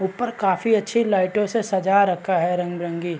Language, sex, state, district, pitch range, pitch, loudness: Hindi, male, Chhattisgarh, Raigarh, 180-215 Hz, 190 Hz, -21 LUFS